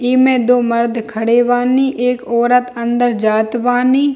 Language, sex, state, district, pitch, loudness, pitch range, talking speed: Hindi, female, Bihar, Darbhanga, 245 Hz, -14 LUFS, 235-250 Hz, 160 wpm